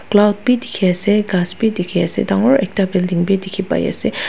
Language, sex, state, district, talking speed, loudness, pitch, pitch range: Nagamese, female, Nagaland, Dimapur, 210 wpm, -16 LUFS, 195 Hz, 185-210 Hz